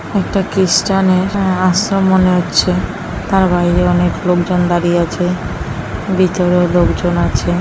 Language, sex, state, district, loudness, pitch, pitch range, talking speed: Bengali, female, West Bengal, Purulia, -14 LUFS, 180 Hz, 175-190 Hz, 100 wpm